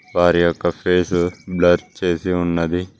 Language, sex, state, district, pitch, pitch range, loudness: Telugu, male, Telangana, Mahabubabad, 90 Hz, 85-90 Hz, -18 LUFS